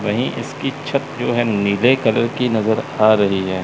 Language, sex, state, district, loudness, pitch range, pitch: Hindi, male, Chandigarh, Chandigarh, -18 LUFS, 105-125 Hz, 115 Hz